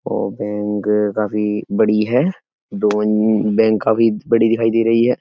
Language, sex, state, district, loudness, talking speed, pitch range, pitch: Hindi, male, Uttar Pradesh, Etah, -17 LUFS, 150 wpm, 105-115 Hz, 110 Hz